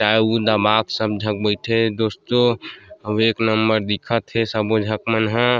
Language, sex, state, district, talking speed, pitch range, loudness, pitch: Chhattisgarhi, male, Chhattisgarh, Sarguja, 170 wpm, 110-115 Hz, -19 LUFS, 110 Hz